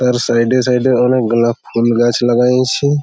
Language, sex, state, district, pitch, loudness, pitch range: Bengali, male, West Bengal, Malda, 125 Hz, -13 LUFS, 120-130 Hz